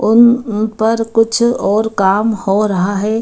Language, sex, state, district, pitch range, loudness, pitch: Hindi, female, Bihar, Gaya, 205-225 Hz, -13 LUFS, 220 Hz